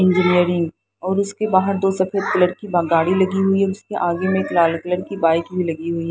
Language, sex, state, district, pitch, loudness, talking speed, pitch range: Hindi, female, Haryana, Jhajjar, 185 Hz, -19 LUFS, 235 wpm, 170-195 Hz